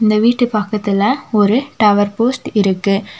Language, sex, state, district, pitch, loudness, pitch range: Tamil, female, Tamil Nadu, Nilgiris, 215 Hz, -15 LUFS, 205-240 Hz